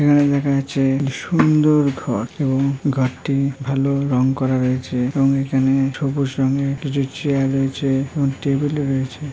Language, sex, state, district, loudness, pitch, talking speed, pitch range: Bengali, female, West Bengal, Purulia, -19 LUFS, 135 Hz, 150 wpm, 135-140 Hz